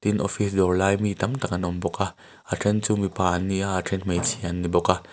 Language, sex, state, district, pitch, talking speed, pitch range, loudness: Mizo, male, Mizoram, Aizawl, 95 Hz, 255 wpm, 90-105 Hz, -24 LUFS